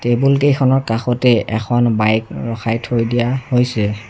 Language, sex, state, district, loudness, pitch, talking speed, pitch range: Assamese, male, Assam, Sonitpur, -16 LUFS, 120 Hz, 115 wpm, 115-125 Hz